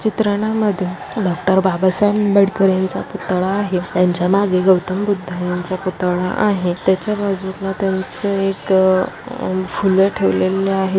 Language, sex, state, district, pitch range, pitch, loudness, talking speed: Marathi, female, Maharashtra, Aurangabad, 185-200 Hz, 190 Hz, -17 LUFS, 120 wpm